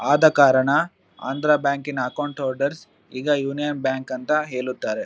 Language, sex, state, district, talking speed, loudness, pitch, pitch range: Kannada, male, Karnataka, Bellary, 145 wpm, -22 LUFS, 140 Hz, 130-150 Hz